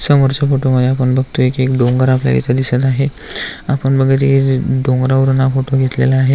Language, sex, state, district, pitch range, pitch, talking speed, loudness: Marathi, male, Maharashtra, Aurangabad, 130-135 Hz, 130 Hz, 180 wpm, -14 LUFS